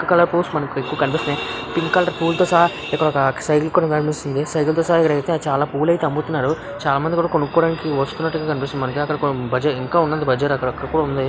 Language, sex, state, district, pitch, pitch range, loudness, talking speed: Telugu, male, Andhra Pradesh, Visakhapatnam, 150 Hz, 140-165 Hz, -19 LUFS, 160 wpm